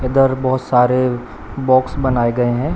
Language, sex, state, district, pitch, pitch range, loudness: Hindi, male, Bihar, Samastipur, 130 Hz, 120-130 Hz, -16 LUFS